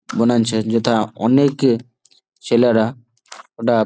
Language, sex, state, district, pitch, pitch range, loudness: Bengali, male, West Bengal, Malda, 120 Hz, 115-125 Hz, -17 LUFS